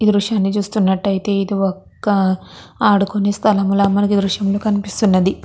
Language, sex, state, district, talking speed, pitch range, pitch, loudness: Telugu, female, Andhra Pradesh, Krishna, 165 wpm, 195-205 Hz, 200 Hz, -17 LUFS